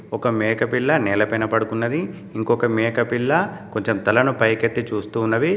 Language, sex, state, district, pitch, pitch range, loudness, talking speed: Telugu, male, Telangana, Komaram Bheem, 115 Hz, 110-120 Hz, -20 LUFS, 110 wpm